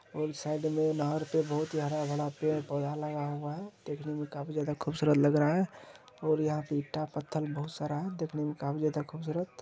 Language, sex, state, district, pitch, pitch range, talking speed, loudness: Hindi, male, Bihar, Araria, 150 Hz, 150-155 Hz, 225 wpm, -33 LUFS